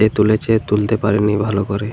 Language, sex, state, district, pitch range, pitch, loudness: Bengali, male, Jharkhand, Jamtara, 105-110 Hz, 105 Hz, -17 LUFS